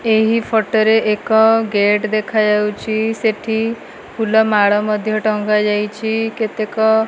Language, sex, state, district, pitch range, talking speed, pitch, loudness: Odia, female, Odisha, Malkangiri, 210-220 Hz, 110 wpm, 220 Hz, -16 LUFS